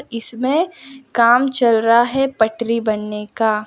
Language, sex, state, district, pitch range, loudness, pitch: Hindi, female, Gujarat, Valsad, 225-265 Hz, -17 LUFS, 235 Hz